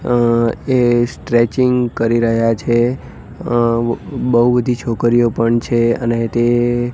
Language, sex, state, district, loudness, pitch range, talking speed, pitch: Gujarati, male, Gujarat, Gandhinagar, -15 LUFS, 115-120 Hz, 120 wpm, 120 Hz